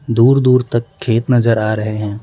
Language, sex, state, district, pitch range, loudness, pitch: Hindi, male, Bihar, West Champaran, 110-125 Hz, -14 LUFS, 115 Hz